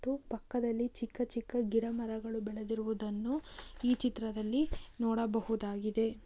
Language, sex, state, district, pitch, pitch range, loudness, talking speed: Kannada, female, Karnataka, Bijapur, 230 Hz, 220-245 Hz, -36 LUFS, 95 wpm